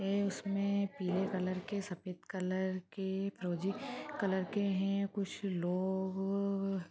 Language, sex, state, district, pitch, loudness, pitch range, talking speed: Hindi, female, Uttar Pradesh, Deoria, 195 Hz, -37 LUFS, 185-200 Hz, 140 wpm